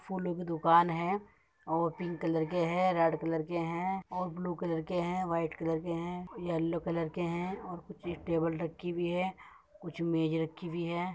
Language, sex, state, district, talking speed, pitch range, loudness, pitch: Hindi, female, Uttar Pradesh, Muzaffarnagar, 205 wpm, 165-180 Hz, -33 LUFS, 170 Hz